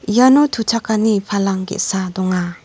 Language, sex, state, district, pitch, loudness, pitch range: Garo, female, Meghalaya, North Garo Hills, 200 Hz, -16 LUFS, 190-225 Hz